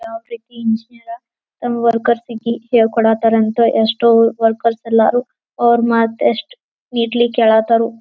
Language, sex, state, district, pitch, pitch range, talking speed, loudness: Kannada, female, Karnataka, Belgaum, 230 Hz, 225-240 Hz, 135 wpm, -15 LUFS